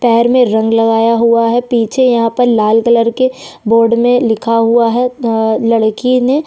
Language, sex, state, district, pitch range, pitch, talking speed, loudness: Hindi, female, Chhattisgarh, Sukma, 225-245 Hz, 230 Hz, 195 wpm, -11 LUFS